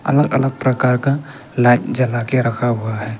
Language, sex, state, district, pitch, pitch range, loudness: Hindi, male, Arunachal Pradesh, Papum Pare, 125 Hz, 120-135 Hz, -17 LUFS